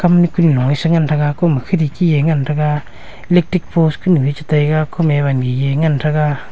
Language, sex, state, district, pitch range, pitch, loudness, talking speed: Wancho, male, Arunachal Pradesh, Longding, 145-165 Hz, 155 Hz, -15 LUFS, 195 wpm